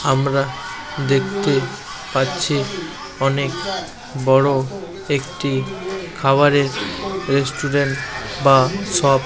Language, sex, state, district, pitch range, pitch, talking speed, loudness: Bengali, male, West Bengal, Malda, 135-160 Hz, 140 Hz, 70 wpm, -19 LUFS